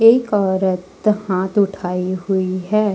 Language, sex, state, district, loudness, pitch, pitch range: Hindi, female, Jharkhand, Deoghar, -18 LUFS, 190 Hz, 185-210 Hz